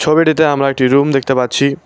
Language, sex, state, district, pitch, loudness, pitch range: Bengali, male, West Bengal, Cooch Behar, 140 Hz, -13 LUFS, 135-150 Hz